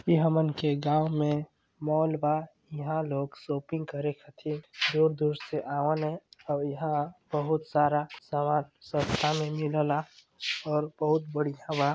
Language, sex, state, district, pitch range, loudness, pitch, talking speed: Chhattisgarhi, male, Chhattisgarh, Balrampur, 145-155 Hz, -30 LUFS, 150 Hz, 145 wpm